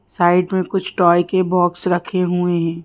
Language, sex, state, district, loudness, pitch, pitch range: Hindi, female, Madhya Pradesh, Bhopal, -17 LUFS, 180 Hz, 175-185 Hz